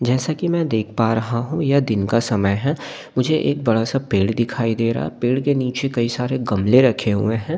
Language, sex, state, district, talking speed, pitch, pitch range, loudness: Hindi, male, Delhi, New Delhi, 230 wpm, 120 Hz, 115-135 Hz, -19 LUFS